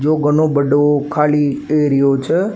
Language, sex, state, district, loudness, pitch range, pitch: Rajasthani, male, Rajasthan, Nagaur, -15 LUFS, 140-150 Hz, 145 Hz